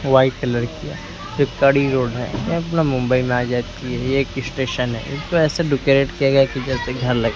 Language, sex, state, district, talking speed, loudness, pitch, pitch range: Hindi, male, Maharashtra, Mumbai Suburban, 220 wpm, -19 LUFS, 130 Hz, 125-140 Hz